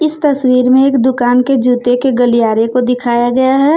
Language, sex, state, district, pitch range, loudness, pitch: Hindi, female, Jharkhand, Deoghar, 245-265 Hz, -11 LUFS, 250 Hz